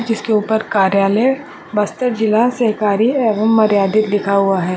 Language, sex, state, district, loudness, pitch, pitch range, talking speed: Hindi, female, Chhattisgarh, Bastar, -15 LUFS, 215 Hz, 200-225 Hz, 140 wpm